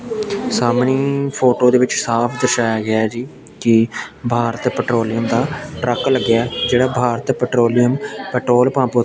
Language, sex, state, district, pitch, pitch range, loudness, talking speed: Punjabi, male, Punjab, Pathankot, 125 Hz, 115-130 Hz, -17 LUFS, 140 wpm